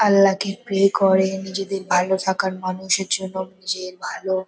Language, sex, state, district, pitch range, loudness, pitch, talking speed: Bengali, female, West Bengal, Kolkata, 190-195 Hz, -21 LUFS, 190 Hz, 145 wpm